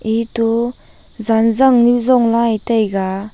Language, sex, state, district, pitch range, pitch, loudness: Wancho, female, Arunachal Pradesh, Longding, 220-240 Hz, 230 Hz, -15 LUFS